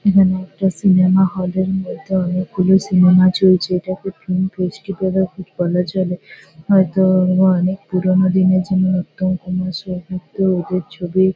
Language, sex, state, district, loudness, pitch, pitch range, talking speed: Bengali, female, West Bengal, Kolkata, -17 LUFS, 185 Hz, 180-190 Hz, 145 wpm